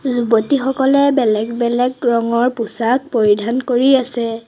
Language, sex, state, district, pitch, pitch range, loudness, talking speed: Assamese, female, Assam, Sonitpur, 240 Hz, 230-260 Hz, -16 LUFS, 105 wpm